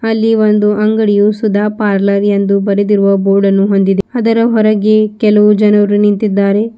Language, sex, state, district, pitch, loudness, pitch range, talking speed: Kannada, female, Karnataka, Bidar, 210 Hz, -11 LUFS, 200-215 Hz, 125 wpm